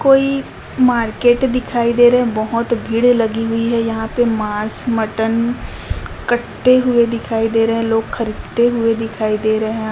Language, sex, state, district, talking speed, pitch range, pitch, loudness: Hindi, female, Chhattisgarh, Raipur, 155 wpm, 225-240 Hz, 230 Hz, -16 LUFS